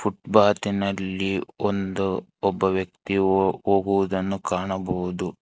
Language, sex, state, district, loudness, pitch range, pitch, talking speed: Kannada, male, Karnataka, Bangalore, -24 LUFS, 95-100 Hz, 95 Hz, 75 wpm